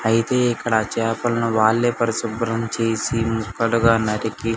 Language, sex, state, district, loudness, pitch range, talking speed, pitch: Telugu, male, Andhra Pradesh, Anantapur, -20 LUFS, 110-115 Hz, 120 wpm, 115 Hz